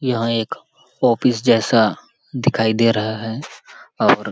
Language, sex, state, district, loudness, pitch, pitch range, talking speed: Hindi, male, Chhattisgarh, Sarguja, -18 LUFS, 115 Hz, 110-125 Hz, 140 wpm